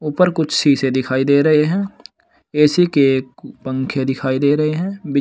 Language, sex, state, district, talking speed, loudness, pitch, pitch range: Hindi, male, Uttar Pradesh, Saharanpur, 160 wpm, -16 LUFS, 145 Hz, 135-160 Hz